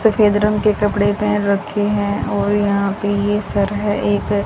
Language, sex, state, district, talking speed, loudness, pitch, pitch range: Hindi, female, Haryana, Jhajjar, 190 wpm, -17 LUFS, 205 Hz, 200-210 Hz